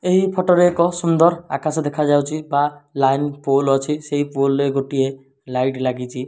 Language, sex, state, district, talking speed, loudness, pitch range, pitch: Odia, male, Odisha, Malkangiri, 160 wpm, -19 LUFS, 135-155 Hz, 145 Hz